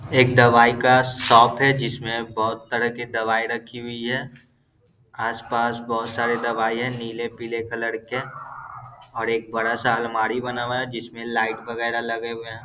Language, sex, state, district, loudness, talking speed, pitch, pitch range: Hindi, male, Bihar, Gaya, -22 LUFS, 175 wpm, 115 Hz, 115-120 Hz